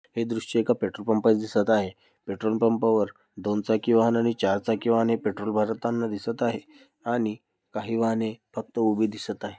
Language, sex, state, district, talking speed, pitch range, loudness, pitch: Marathi, male, Maharashtra, Dhule, 165 wpm, 105-115 Hz, -26 LUFS, 110 Hz